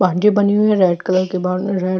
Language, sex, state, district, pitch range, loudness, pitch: Hindi, female, Chhattisgarh, Jashpur, 185-200 Hz, -16 LUFS, 185 Hz